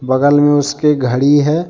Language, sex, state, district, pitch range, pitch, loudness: Hindi, male, Jharkhand, Deoghar, 135-150 Hz, 145 Hz, -12 LUFS